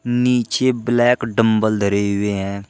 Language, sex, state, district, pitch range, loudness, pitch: Hindi, male, Uttar Pradesh, Shamli, 100-120 Hz, -18 LUFS, 110 Hz